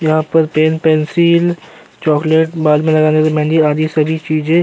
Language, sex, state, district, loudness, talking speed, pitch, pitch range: Hindi, male, Uttar Pradesh, Jyotiba Phule Nagar, -13 LUFS, 180 wpm, 155 Hz, 155-160 Hz